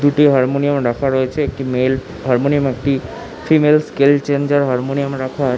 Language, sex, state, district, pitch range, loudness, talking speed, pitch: Bengali, male, West Bengal, Malda, 130-145 Hz, -16 LUFS, 150 wpm, 140 Hz